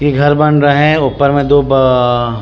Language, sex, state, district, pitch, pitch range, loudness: Chhattisgarhi, male, Chhattisgarh, Rajnandgaon, 140 Hz, 130-145 Hz, -11 LUFS